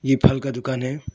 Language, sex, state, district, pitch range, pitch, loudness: Hindi, male, Arunachal Pradesh, Longding, 130-135 Hz, 135 Hz, -22 LUFS